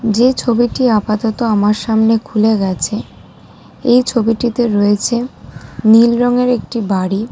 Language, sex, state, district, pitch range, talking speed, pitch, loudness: Bengali, female, West Bengal, Dakshin Dinajpur, 215-240 Hz, 125 wpm, 225 Hz, -14 LUFS